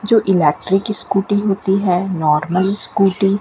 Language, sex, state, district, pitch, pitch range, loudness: Hindi, female, Rajasthan, Bikaner, 195 Hz, 185-200 Hz, -16 LUFS